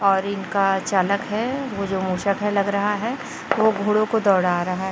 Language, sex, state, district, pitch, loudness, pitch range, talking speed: Hindi, female, Chhattisgarh, Raipur, 200 Hz, -21 LUFS, 190-215 Hz, 195 wpm